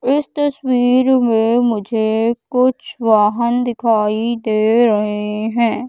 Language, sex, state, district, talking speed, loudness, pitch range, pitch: Hindi, female, Madhya Pradesh, Katni, 100 wpm, -16 LUFS, 220-250 Hz, 235 Hz